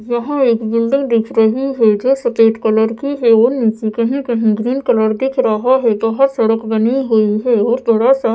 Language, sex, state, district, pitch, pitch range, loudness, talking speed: Hindi, female, Odisha, Sambalpur, 230 Hz, 225-260 Hz, -14 LUFS, 210 wpm